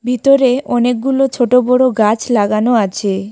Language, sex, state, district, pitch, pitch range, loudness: Bengali, female, West Bengal, Alipurduar, 245 Hz, 215-255 Hz, -13 LUFS